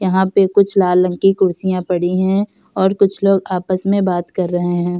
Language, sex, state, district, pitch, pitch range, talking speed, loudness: Hindi, female, Bihar, Samastipur, 185 Hz, 180-195 Hz, 215 wpm, -16 LUFS